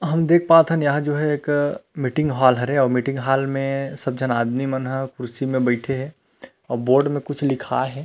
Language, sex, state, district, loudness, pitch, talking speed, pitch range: Chhattisgarhi, male, Chhattisgarh, Rajnandgaon, -21 LUFS, 135 Hz, 200 wpm, 130-145 Hz